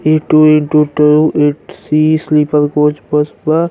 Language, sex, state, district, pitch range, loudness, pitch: Bhojpuri, male, Uttar Pradesh, Gorakhpur, 150-155 Hz, -11 LUFS, 150 Hz